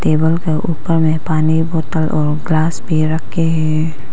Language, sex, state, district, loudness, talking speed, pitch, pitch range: Hindi, female, Arunachal Pradesh, Papum Pare, -16 LUFS, 160 wpm, 160 Hz, 155-160 Hz